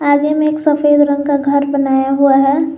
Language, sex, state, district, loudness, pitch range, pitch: Hindi, female, Jharkhand, Garhwa, -13 LUFS, 280-300 Hz, 285 Hz